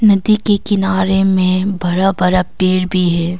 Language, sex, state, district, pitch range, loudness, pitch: Hindi, female, Arunachal Pradesh, Longding, 185-195 Hz, -14 LUFS, 190 Hz